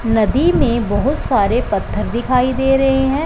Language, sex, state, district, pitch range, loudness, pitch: Hindi, female, Punjab, Pathankot, 235-270 Hz, -16 LUFS, 260 Hz